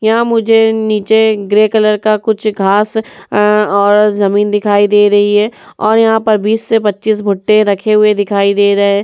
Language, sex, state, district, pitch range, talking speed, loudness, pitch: Hindi, female, Uttar Pradesh, Jyotiba Phule Nagar, 205-220 Hz, 185 wpm, -11 LUFS, 210 Hz